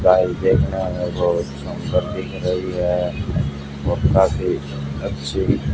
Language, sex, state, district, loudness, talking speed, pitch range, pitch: Hindi, male, Haryana, Charkhi Dadri, -21 LUFS, 125 wpm, 70-90 Hz, 75 Hz